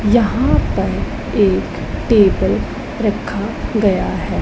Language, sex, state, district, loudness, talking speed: Hindi, female, Punjab, Pathankot, -17 LUFS, 95 wpm